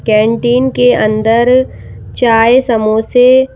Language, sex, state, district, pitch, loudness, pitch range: Hindi, female, Madhya Pradesh, Bhopal, 240 Hz, -10 LUFS, 225-250 Hz